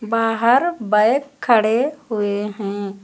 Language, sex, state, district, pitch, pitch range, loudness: Hindi, female, Uttar Pradesh, Lucknow, 225 Hz, 210-245 Hz, -18 LUFS